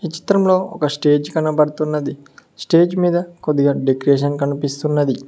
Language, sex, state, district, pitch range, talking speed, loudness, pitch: Telugu, male, Telangana, Mahabubabad, 140-170 Hz, 115 wpm, -17 LUFS, 150 Hz